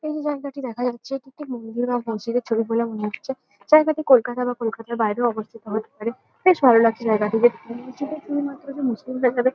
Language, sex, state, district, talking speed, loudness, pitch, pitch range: Bengali, female, West Bengal, Kolkata, 200 wpm, -22 LUFS, 245 Hz, 230-270 Hz